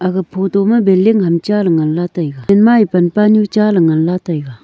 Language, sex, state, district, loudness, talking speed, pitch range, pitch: Wancho, female, Arunachal Pradesh, Longding, -13 LUFS, 260 wpm, 170-210 Hz, 185 Hz